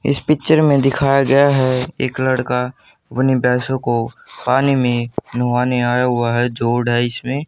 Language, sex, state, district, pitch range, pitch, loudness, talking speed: Hindi, male, Haryana, Charkhi Dadri, 120-135 Hz, 125 Hz, -17 LUFS, 145 wpm